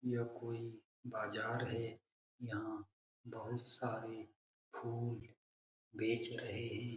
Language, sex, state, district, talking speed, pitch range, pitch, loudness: Hindi, male, Bihar, Jamui, 95 wpm, 110-120 Hz, 115 Hz, -44 LUFS